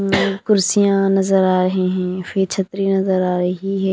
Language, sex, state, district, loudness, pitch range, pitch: Hindi, female, Punjab, Kapurthala, -17 LUFS, 185-195 Hz, 190 Hz